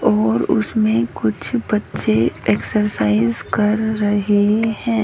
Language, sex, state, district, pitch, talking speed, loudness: Hindi, female, Haryana, Rohtak, 205 Hz, 95 wpm, -18 LUFS